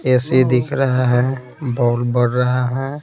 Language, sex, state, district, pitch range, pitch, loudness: Hindi, male, Bihar, Patna, 125-130 Hz, 125 Hz, -17 LUFS